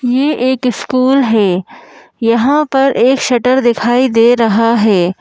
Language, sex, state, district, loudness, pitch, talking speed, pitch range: Hindi, female, Madhya Pradesh, Bhopal, -12 LUFS, 245 Hz, 140 wpm, 230-260 Hz